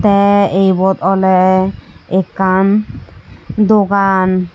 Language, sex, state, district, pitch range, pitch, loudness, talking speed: Chakma, female, Tripura, Unakoti, 185-200 Hz, 190 Hz, -12 LUFS, 65 wpm